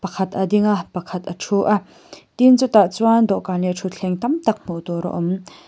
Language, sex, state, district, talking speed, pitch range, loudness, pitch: Mizo, female, Mizoram, Aizawl, 210 wpm, 180-210 Hz, -19 LUFS, 190 Hz